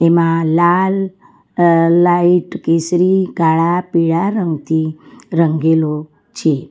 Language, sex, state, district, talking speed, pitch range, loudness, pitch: Gujarati, female, Gujarat, Valsad, 90 wpm, 160-180 Hz, -14 LUFS, 170 Hz